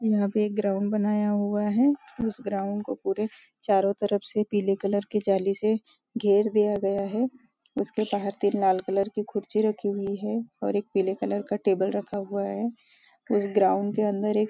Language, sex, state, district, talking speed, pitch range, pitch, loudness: Hindi, female, Maharashtra, Nagpur, 200 wpm, 200-215 Hz, 205 Hz, -26 LUFS